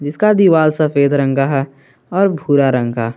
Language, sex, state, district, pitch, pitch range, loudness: Hindi, male, Jharkhand, Garhwa, 140 Hz, 135-160 Hz, -14 LUFS